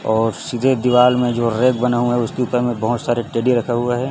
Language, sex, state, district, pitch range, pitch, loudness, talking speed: Hindi, male, Chhattisgarh, Raipur, 120-125 Hz, 120 Hz, -17 LUFS, 260 wpm